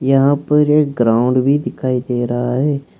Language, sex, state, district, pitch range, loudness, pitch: Hindi, male, Jharkhand, Deoghar, 125-145 Hz, -16 LUFS, 135 Hz